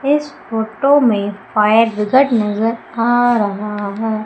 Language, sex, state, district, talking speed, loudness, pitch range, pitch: Hindi, female, Madhya Pradesh, Umaria, 125 wpm, -16 LUFS, 210-240 Hz, 225 Hz